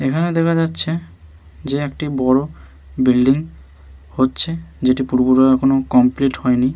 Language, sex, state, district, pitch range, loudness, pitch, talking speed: Bengali, male, West Bengal, Malda, 125-140 Hz, -17 LUFS, 130 Hz, 115 wpm